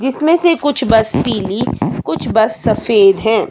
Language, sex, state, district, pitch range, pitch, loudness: Hindi, female, Himachal Pradesh, Shimla, 220-280 Hz, 225 Hz, -14 LUFS